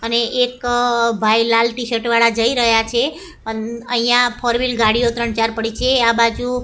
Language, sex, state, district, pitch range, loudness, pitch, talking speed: Gujarati, female, Gujarat, Gandhinagar, 230-245 Hz, -16 LUFS, 235 Hz, 170 wpm